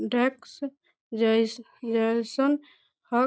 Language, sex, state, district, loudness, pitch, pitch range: Maithili, female, Bihar, Samastipur, -27 LUFS, 245 Hz, 230-275 Hz